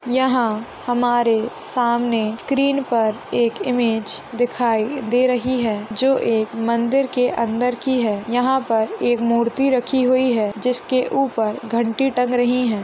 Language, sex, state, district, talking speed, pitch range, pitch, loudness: Hindi, female, Maharashtra, Solapur, 145 wpm, 225-255 Hz, 240 Hz, -19 LUFS